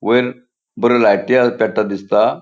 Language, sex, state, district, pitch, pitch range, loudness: Konkani, male, Goa, North and South Goa, 120 Hz, 115-125 Hz, -15 LUFS